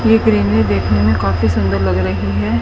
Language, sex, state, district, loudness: Hindi, female, Haryana, Charkhi Dadri, -15 LUFS